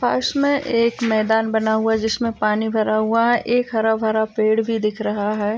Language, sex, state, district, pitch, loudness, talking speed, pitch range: Hindi, female, Uttar Pradesh, Jyotiba Phule Nagar, 220 Hz, -19 LUFS, 215 wpm, 215-230 Hz